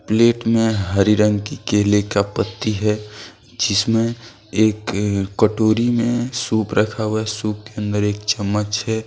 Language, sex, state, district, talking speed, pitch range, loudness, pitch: Hindi, male, Jharkhand, Deoghar, 150 wpm, 105-115 Hz, -19 LUFS, 105 Hz